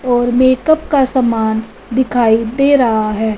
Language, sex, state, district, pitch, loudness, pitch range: Hindi, female, Punjab, Fazilka, 245 Hz, -13 LUFS, 225-260 Hz